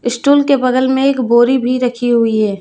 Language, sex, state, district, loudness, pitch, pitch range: Hindi, female, Jharkhand, Deoghar, -13 LUFS, 250 Hz, 240-265 Hz